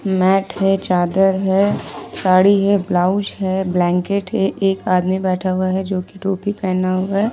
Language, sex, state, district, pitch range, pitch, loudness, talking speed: Hindi, female, Jharkhand, Ranchi, 185-195 Hz, 190 Hz, -17 LUFS, 170 wpm